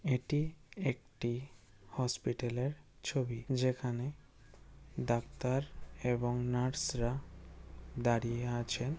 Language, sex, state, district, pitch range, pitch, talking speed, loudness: Bengali, female, West Bengal, Malda, 120-135 Hz, 125 Hz, 80 wpm, -37 LUFS